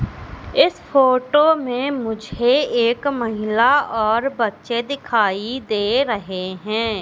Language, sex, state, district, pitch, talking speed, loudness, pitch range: Hindi, female, Madhya Pradesh, Katni, 235 Hz, 100 wpm, -19 LUFS, 215-265 Hz